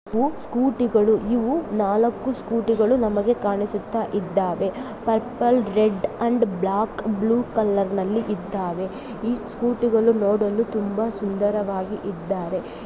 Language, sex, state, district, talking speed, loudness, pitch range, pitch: Kannada, female, Karnataka, Dharwad, 110 wpm, -23 LUFS, 200-235 Hz, 215 Hz